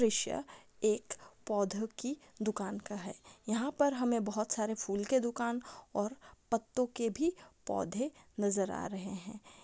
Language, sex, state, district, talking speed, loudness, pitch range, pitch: Hindi, female, Chhattisgarh, Raigarh, 150 wpm, -36 LUFS, 210-250 Hz, 220 Hz